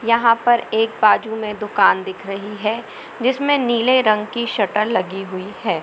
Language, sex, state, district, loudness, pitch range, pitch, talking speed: Hindi, male, Madhya Pradesh, Katni, -18 LUFS, 205-235 Hz, 220 Hz, 175 wpm